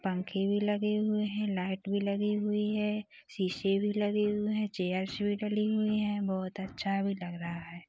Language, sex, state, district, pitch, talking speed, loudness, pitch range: Hindi, female, Chhattisgarh, Rajnandgaon, 205 Hz, 190 wpm, -32 LUFS, 190-210 Hz